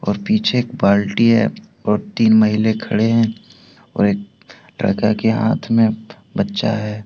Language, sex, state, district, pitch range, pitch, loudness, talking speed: Hindi, male, Jharkhand, Deoghar, 105-115 Hz, 110 Hz, -17 LUFS, 155 wpm